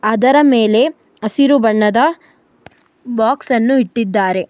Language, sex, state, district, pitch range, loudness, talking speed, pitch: Kannada, female, Karnataka, Bangalore, 215-275 Hz, -13 LUFS, 80 wpm, 235 Hz